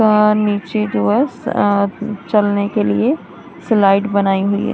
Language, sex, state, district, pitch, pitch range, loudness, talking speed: Hindi, female, Punjab, Kapurthala, 205 Hz, 200-215 Hz, -16 LUFS, 115 wpm